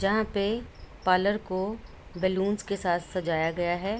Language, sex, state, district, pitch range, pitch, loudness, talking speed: Hindi, female, Uttar Pradesh, Budaun, 175-205 Hz, 190 Hz, -28 LUFS, 150 wpm